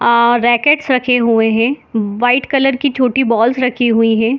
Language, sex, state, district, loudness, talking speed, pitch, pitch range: Hindi, female, Jharkhand, Jamtara, -13 LUFS, 165 wpm, 245 Hz, 230-260 Hz